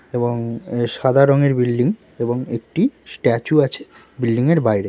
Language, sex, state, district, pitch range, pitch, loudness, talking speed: Bengali, male, West Bengal, Purulia, 120-145 Hz, 125 Hz, -19 LUFS, 145 wpm